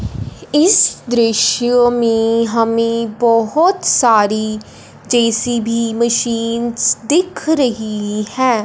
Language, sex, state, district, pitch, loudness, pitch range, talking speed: Hindi, male, Punjab, Fazilka, 230 Hz, -14 LUFS, 225-245 Hz, 75 wpm